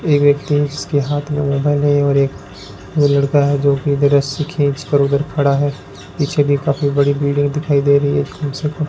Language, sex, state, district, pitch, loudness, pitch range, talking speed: Hindi, male, Rajasthan, Bikaner, 145 Hz, -16 LUFS, 140-145 Hz, 235 wpm